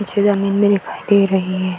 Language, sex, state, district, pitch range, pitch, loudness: Hindi, female, Bihar, Gaya, 185-205 Hz, 200 Hz, -16 LUFS